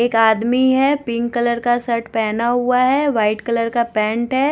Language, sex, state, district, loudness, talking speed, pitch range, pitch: Hindi, female, Odisha, Nuapada, -17 LUFS, 200 wpm, 230-250 Hz, 240 Hz